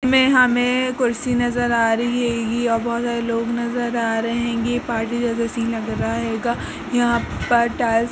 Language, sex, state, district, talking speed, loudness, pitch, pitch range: Hindi, female, Uttar Pradesh, Jalaun, 200 wpm, -20 LUFS, 235 Hz, 230-245 Hz